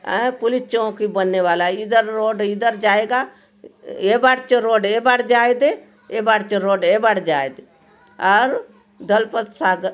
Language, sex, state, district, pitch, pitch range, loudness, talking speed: Halbi, male, Chhattisgarh, Bastar, 220 Hz, 200-245 Hz, -18 LUFS, 170 wpm